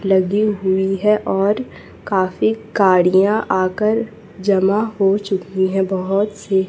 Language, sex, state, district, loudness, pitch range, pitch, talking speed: Hindi, female, Chhattisgarh, Raipur, -17 LUFS, 190-210 Hz, 195 Hz, 115 wpm